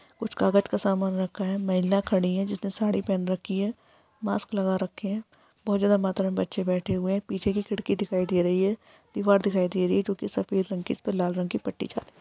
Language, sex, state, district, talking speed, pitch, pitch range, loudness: Hindi, female, Bihar, Gaya, 250 wpm, 195 Hz, 185-200 Hz, -27 LUFS